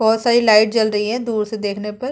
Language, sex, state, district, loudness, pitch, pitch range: Hindi, female, Bihar, Vaishali, -17 LUFS, 220 Hz, 210-230 Hz